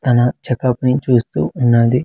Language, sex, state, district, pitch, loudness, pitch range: Telugu, male, Andhra Pradesh, Sri Satya Sai, 125 Hz, -16 LUFS, 120-130 Hz